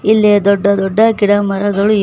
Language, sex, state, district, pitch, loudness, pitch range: Kannada, female, Karnataka, Koppal, 205 Hz, -12 LUFS, 200-210 Hz